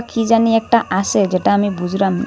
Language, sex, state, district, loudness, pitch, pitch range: Bengali, female, Assam, Hailakandi, -16 LUFS, 200 Hz, 190-230 Hz